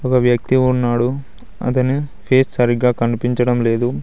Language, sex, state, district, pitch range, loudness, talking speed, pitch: Telugu, male, Telangana, Mahabubabad, 120-130 Hz, -17 LUFS, 120 wpm, 125 Hz